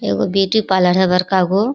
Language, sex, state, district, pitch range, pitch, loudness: Hindi, female, Bihar, Kishanganj, 180-195 Hz, 190 Hz, -15 LUFS